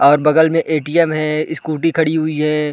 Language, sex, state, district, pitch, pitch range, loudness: Hindi, male, Uttar Pradesh, Budaun, 155 Hz, 150-160 Hz, -16 LUFS